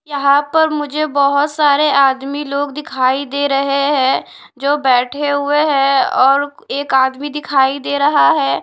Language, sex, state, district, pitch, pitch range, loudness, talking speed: Hindi, female, Punjab, Pathankot, 285 Hz, 275-290 Hz, -15 LUFS, 155 wpm